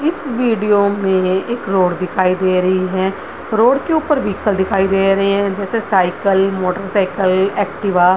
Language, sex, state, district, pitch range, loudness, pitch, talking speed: Hindi, female, Bihar, Madhepura, 185-205 Hz, -16 LUFS, 195 Hz, 160 wpm